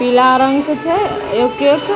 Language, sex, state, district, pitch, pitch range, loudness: Maithili, female, Bihar, Begusarai, 285 Hz, 260-335 Hz, -14 LUFS